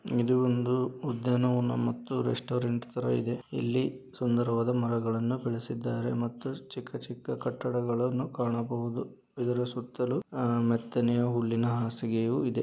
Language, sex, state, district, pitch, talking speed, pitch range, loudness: Kannada, male, Karnataka, Dharwad, 120 Hz, 115 wpm, 115-125 Hz, -31 LUFS